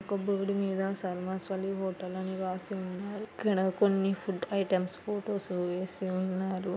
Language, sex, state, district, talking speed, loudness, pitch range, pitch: Telugu, female, Andhra Pradesh, Anantapur, 140 wpm, -32 LUFS, 185-200 Hz, 190 Hz